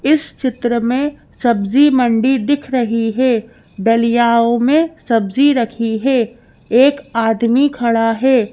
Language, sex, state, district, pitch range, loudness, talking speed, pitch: Hindi, female, Madhya Pradesh, Bhopal, 230-265 Hz, -15 LUFS, 120 wpm, 240 Hz